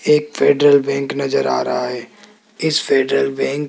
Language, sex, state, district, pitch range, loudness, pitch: Hindi, male, Rajasthan, Jaipur, 115-150 Hz, -17 LUFS, 140 Hz